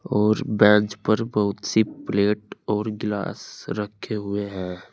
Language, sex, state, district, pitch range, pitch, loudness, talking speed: Hindi, male, Uttar Pradesh, Saharanpur, 100-105 Hz, 105 Hz, -23 LUFS, 135 wpm